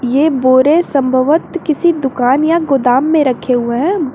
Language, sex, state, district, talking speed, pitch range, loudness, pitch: Hindi, female, Jharkhand, Garhwa, 160 wpm, 255-315 Hz, -12 LUFS, 275 Hz